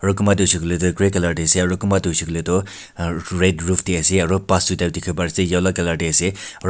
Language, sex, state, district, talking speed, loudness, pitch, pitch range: Nagamese, male, Nagaland, Kohima, 270 wpm, -18 LUFS, 90 Hz, 85-95 Hz